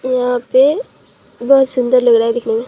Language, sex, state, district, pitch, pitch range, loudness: Hindi, female, Bihar, Katihar, 250 Hz, 240-260 Hz, -13 LUFS